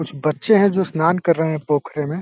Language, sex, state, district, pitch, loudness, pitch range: Hindi, male, Uttar Pradesh, Deoria, 160 Hz, -18 LUFS, 150-180 Hz